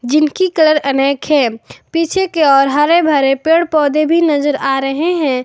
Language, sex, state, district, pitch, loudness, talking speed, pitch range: Hindi, female, Jharkhand, Garhwa, 300 Hz, -13 LUFS, 175 wpm, 275-330 Hz